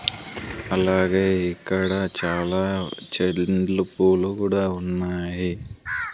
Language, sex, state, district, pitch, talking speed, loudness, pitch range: Telugu, male, Andhra Pradesh, Sri Satya Sai, 95 Hz, 70 wpm, -23 LUFS, 90-95 Hz